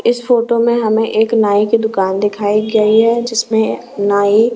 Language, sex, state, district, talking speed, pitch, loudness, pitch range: Hindi, female, Chhattisgarh, Raipur, 170 wpm, 220 Hz, -14 LUFS, 210-230 Hz